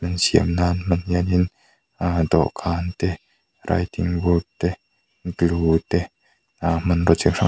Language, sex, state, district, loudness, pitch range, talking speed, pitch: Mizo, male, Mizoram, Aizawl, -21 LUFS, 85-90 Hz, 110 wpm, 85 Hz